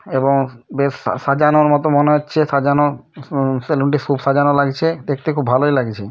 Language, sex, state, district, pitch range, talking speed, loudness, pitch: Bengali, male, West Bengal, Kolkata, 135-150 Hz, 175 wpm, -16 LUFS, 140 Hz